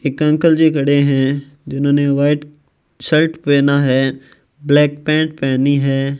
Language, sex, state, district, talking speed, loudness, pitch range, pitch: Hindi, male, Rajasthan, Bikaner, 135 wpm, -15 LUFS, 140-150 Hz, 145 Hz